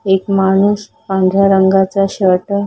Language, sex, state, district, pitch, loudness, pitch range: Marathi, female, Maharashtra, Solapur, 195 Hz, -13 LUFS, 190-195 Hz